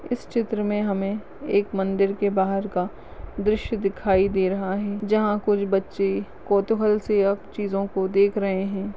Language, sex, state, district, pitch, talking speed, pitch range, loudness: Hindi, female, Uttarakhand, Uttarkashi, 200 Hz, 165 wpm, 195-210 Hz, -24 LUFS